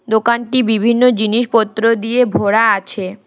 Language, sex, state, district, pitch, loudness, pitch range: Bengali, female, West Bengal, Alipurduar, 225 Hz, -14 LUFS, 220-240 Hz